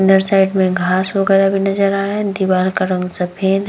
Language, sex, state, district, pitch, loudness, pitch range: Hindi, female, Bihar, Vaishali, 195 Hz, -15 LUFS, 185-195 Hz